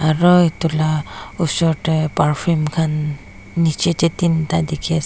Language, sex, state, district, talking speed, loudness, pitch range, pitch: Nagamese, female, Nagaland, Dimapur, 130 wpm, -18 LUFS, 155-165 Hz, 160 Hz